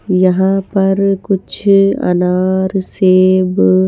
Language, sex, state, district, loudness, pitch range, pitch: Hindi, female, Chhattisgarh, Raipur, -13 LUFS, 185-195 Hz, 190 Hz